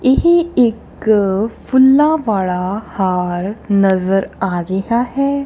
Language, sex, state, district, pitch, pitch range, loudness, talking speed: Punjabi, female, Punjab, Kapurthala, 210 Hz, 190-260 Hz, -15 LUFS, 100 wpm